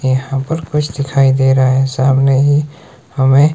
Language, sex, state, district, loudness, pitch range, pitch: Hindi, male, Himachal Pradesh, Shimla, -13 LUFS, 130-145 Hz, 135 Hz